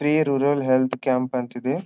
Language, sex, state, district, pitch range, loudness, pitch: Kannada, male, Karnataka, Bijapur, 130-145 Hz, -22 LUFS, 130 Hz